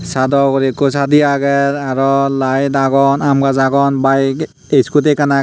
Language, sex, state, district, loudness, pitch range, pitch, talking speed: Chakma, male, Tripura, Unakoti, -13 LUFS, 135-140 Hz, 140 Hz, 165 wpm